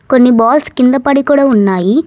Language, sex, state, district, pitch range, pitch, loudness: Telugu, female, Telangana, Hyderabad, 230-285 Hz, 265 Hz, -10 LUFS